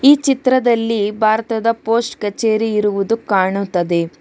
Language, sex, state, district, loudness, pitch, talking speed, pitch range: Kannada, female, Karnataka, Bangalore, -16 LUFS, 220 Hz, 100 wpm, 200-230 Hz